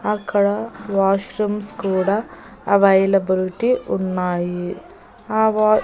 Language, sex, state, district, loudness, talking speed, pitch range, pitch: Telugu, female, Andhra Pradesh, Annamaya, -19 LUFS, 70 wpm, 190-215 Hz, 200 Hz